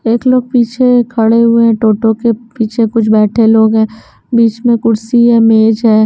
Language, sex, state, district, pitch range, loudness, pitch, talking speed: Hindi, female, Bihar, West Champaran, 220-235 Hz, -10 LUFS, 230 Hz, 190 wpm